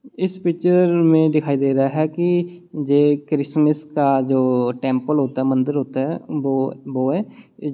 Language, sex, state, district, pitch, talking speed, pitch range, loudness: Hindi, male, Bihar, Muzaffarpur, 145 Hz, 170 wpm, 135-165 Hz, -19 LUFS